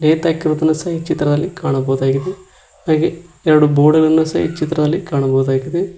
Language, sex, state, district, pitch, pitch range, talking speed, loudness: Kannada, male, Karnataka, Koppal, 155 Hz, 145-165 Hz, 140 wpm, -16 LUFS